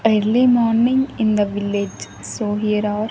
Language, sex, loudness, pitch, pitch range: English, female, -18 LUFS, 215 Hz, 205-230 Hz